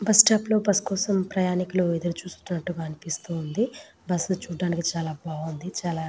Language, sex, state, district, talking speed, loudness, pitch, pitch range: Telugu, female, Telangana, Nalgonda, 150 wpm, -25 LUFS, 180 Hz, 165-195 Hz